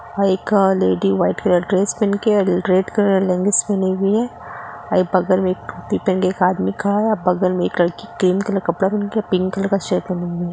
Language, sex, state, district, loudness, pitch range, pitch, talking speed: Hindi, female, West Bengal, Purulia, -18 LUFS, 180-200 Hz, 190 Hz, 190 wpm